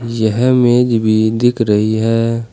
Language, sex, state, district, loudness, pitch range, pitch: Hindi, male, Uttar Pradesh, Saharanpur, -13 LUFS, 110-120 Hz, 115 Hz